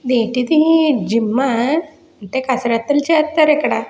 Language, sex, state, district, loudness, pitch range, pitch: Telugu, female, Andhra Pradesh, Guntur, -16 LUFS, 240-310 Hz, 270 Hz